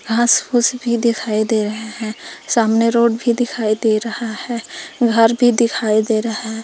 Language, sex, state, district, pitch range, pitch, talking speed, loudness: Hindi, female, Jharkhand, Palamu, 220-240 Hz, 230 Hz, 180 wpm, -17 LUFS